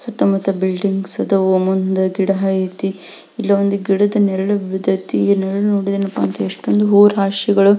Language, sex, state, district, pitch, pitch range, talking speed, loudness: Kannada, female, Karnataka, Belgaum, 195 Hz, 190-200 Hz, 155 wpm, -16 LUFS